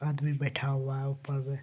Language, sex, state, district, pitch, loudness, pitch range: Hindi, male, Bihar, Araria, 140 Hz, -32 LUFS, 135-145 Hz